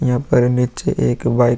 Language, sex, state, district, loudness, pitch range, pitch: Hindi, male, Bihar, Vaishali, -17 LUFS, 120-125 Hz, 125 Hz